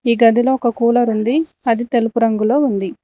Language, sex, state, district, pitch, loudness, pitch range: Telugu, female, Telangana, Mahabubabad, 235 Hz, -16 LUFS, 230-245 Hz